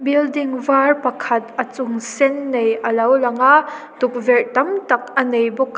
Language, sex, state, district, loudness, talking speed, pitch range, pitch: Mizo, female, Mizoram, Aizawl, -17 LUFS, 175 wpm, 245-280 Hz, 260 Hz